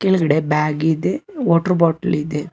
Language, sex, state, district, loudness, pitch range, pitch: Kannada, male, Karnataka, Bangalore, -18 LUFS, 150-180 Hz, 160 Hz